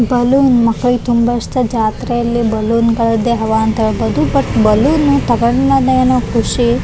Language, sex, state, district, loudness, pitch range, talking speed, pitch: Kannada, female, Karnataka, Raichur, -13 LUFS, 220-245 Hz, 140 wpm, 235 Hz